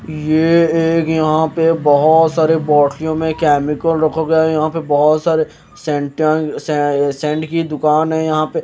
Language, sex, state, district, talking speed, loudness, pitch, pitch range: Hindi, male, Maharashtra, Mumbai Suburban, 175 wpm, -15 LUFS, 155 Hz, 150-160 Hz